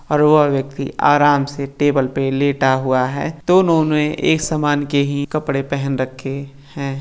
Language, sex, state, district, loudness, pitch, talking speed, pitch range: Hindi, male, Maharashtra, Nagpur, -17 LUFS, 140 Hz, 170 wpm, 135-150 Hz